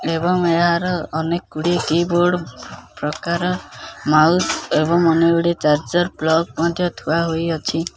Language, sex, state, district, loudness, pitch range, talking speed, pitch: Odia, male, Odisha, Khordha, -18 LUFS, 160-175 Hz, 115 wpm, 170 Hz